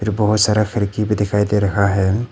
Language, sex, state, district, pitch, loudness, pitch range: Hindi, male, Arunachal Pradesh, Papum Pare, 105 Hz, -17 LUFS, 100-105 Hz